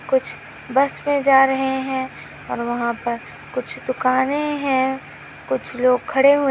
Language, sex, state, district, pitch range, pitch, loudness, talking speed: Hindi, female, Maharashtra, Pune, 255-275 Hz, 265 Hz, -20 LUFS, 145 wpm